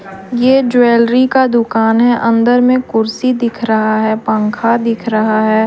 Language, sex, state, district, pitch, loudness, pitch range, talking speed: Hindi, female, Jharkhand, Deoghar, 230 Hz, -12 LUFS, 220-245 Hz, 170 wpm